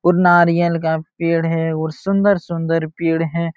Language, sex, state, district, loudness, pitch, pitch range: Hindi, male, Uttar Pradesh, Jalaun, -17 LUFS, 165 Hz, 165-175 Hz